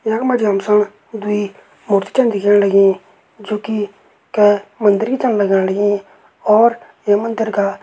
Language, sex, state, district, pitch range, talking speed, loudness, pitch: Garhwali, male, Uttarakhand, Uttarkashi, 200-220 Hz, 170 wpm, -16 LUFS, 205 Hz